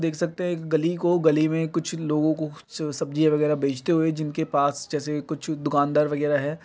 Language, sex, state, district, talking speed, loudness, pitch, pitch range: Hindi, male, Uttar Pradesh, Varanasi, 200 wpm, -24 LUFS, 155 Hz, 150-160 Hz